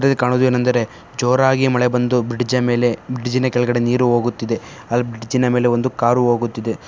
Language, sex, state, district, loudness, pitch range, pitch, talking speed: Kannada, male, Karnataka, Shimoga, -18 LUFS, 120-125 Hz, 125 Hz, 155 wpm